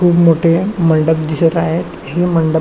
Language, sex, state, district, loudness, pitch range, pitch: Marathi, male, Maharashtra, Chandrapur, -14 LUFS, 160-170 Hz, 165 Hz